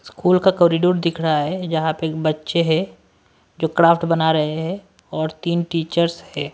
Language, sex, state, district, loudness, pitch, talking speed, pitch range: Hindi, male, Delhi, New Delhi, -19 LUFS, 165 Hz, 175 wpm, 155-170 Hz